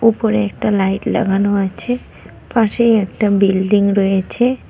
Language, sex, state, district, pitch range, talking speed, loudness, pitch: Bengali, female, West Bengal, Cooch Behar, 195-230 Hz, 115 wpm, -16 LUFS, 205 Hz